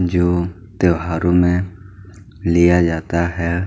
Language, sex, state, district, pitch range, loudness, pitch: Hindi, male, Chhattisgarh, Kabirdham, 85-95 Hz, -17 LUFS, 90 Hz